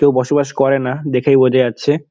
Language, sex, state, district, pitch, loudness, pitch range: Bengali, male, West Bengal, Dakshin Dinajpur, 135 Hz, -15 LUFS, 130-145 Hz